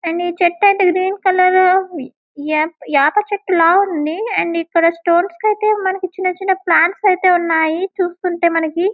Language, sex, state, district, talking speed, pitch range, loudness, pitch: Telugu, female, Telangana, Karimnagar, 140 wpm, 330-380 Hz, -15 LUFS, 360 Hz